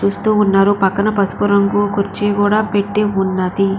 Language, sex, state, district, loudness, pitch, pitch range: Telugu, female, Andhra Pradesh, Krishna, -15 LUFS, 200 Hz, 195-205 Hz